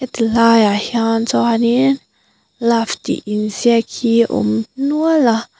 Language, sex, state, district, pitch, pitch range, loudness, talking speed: Mizo, female, Mizoram, Aizawl, 230 Hz, 225-240 Hz, -15 LUFS, 120 wpm